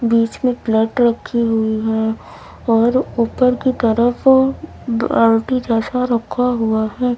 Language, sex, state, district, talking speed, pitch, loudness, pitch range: Hindi, female, Uttar Pradesh, Lalitpur, 125 wpm, 235 Hz, -17 LUFS, 225-250 Hz